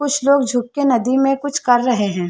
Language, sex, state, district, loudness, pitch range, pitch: Hindi, female, Chhattisgarh, Bilaspur, -17 LUFS, 245-280 Hz, 255 Hz